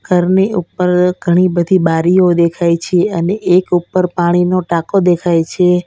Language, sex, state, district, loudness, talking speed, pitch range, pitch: Gujarati, female, Gujarat, Valsad, -13 LUFS, 145 wpm, 175-185 Hz, 180 Hz